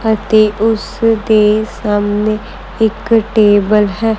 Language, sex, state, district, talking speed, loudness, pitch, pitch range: Punjabi, female, Punjab, Kapurthala, 100 wpm, -13 LUFS, 215 Hz, 210-220 Hz